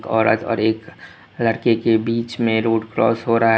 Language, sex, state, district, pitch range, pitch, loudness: Hindi, male, Tripura, West Tripura, 110-115 Hz, 115 Hz, -19 LUFS